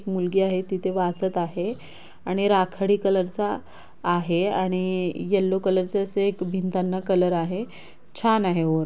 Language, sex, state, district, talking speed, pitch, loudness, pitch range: Marathi, female, Maharashtra, Pune, 140 wpm, 185 Hz, -24 LUFS, 180-195 Hz